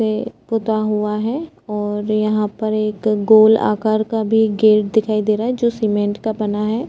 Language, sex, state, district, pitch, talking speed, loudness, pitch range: Hindi, female, Chhattisgarh, Korba, 215 Hz, 200 wpm, -17 LUFS, 210-220 Hz